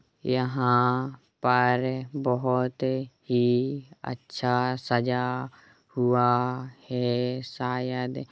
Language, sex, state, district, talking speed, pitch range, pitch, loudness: Hindi, male, Uttar Pradesh, Hamirpur, 65 wpm, 125-130 Hz, 125 Hz, -26 LUFS